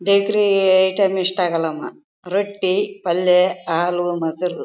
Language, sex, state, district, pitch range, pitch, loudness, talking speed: Kannada, female, Karnataka, Bellary, 175-200 Hz, 185 Hz, -18 LUFS, 105 wpm